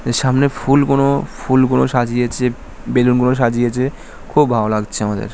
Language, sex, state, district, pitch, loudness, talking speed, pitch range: Bengali, male, West Bengal, North 24 Parganas, 125 Hz, -16 LUFS, 145 wpm, 120-130 Hz